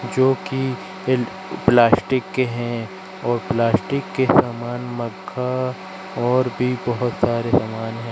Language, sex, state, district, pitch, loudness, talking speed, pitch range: Hindi, female, Madhya Pradesh, Katni, 125 Hz, -21 LUFS, 120 wpm, 120-130 Hz